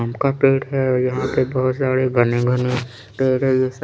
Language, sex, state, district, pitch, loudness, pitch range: Hindi, male, Chandigarh, Chandigarh, 130 Hz, -19 LUFS, 125-130 Hz